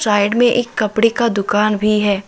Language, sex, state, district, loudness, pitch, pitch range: Hindi, male, Jharkhand, Deoghar, -15 LUFS, 215 Hz, 205-230 Hz